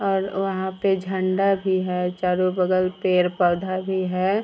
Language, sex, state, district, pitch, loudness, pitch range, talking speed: Hindi, female, Bihar, Vaishali, 185 Hz, -22 LUFS, 185-195 Hz, 150 wpm